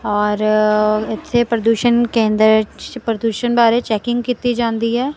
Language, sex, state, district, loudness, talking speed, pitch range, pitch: Punjabi, female, Punjab, Kapurthala, -16 LUFS, 130 wpm, 215-240 Hz, 230 Hz